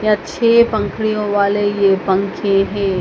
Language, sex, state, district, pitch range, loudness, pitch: Hindi, female, Madhya Pradesh, Dhar, 195-215 Hz, -16 LUFS, 205 Hz